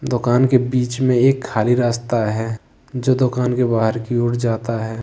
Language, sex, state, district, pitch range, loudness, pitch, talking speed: Hindi, male, Uttar Pradesh, Lalitpur, 115-125 Hz, -18 LUFS, 120 Hz, 190 wpm